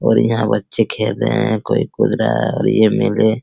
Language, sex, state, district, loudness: Hindi, male, Bihar, Araria, -16 LUFS